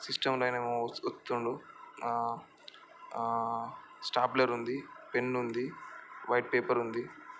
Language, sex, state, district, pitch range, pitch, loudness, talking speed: Telugu, male, Andhra Pradesh, Chittoor, 120-130 Hz, 125 Hz, -34 LUFS, 115 wpm